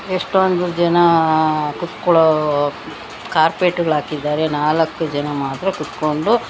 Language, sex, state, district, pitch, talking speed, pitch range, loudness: Kannada, female, Karnataka, Bangalore, 160 Hz, 90 wpm, 150-175 Hz, -17 LUFS